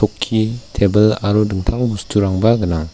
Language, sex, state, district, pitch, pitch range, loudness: Garo, male, Meghalaya, West Garo Hills, 105 Hz, 100-115 Hz, -16 LUFS